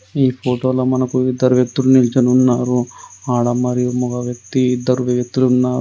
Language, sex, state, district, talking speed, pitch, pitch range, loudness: Telugu, male, Telangana, Adilabad, 145 wpm, 125 Hz, 125-130 Hz, -16 LUFS